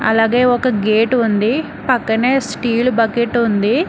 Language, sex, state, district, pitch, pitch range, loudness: Telugu, female, Telangana, Hyderabad, 235 Hz, 225-250 Hz, -15 LUFS